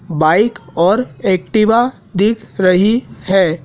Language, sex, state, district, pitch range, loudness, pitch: Hindi, male, Madhya Pradesh, Dhar, 180-220 Hz, -14 LUFS, 195 Hz